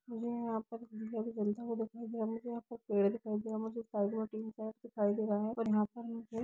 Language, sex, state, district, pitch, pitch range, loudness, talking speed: Hindi, female, Bihar, Sitamarhi, 220 Hz, 215-230 Hz, -38 LUFS, 295 wpm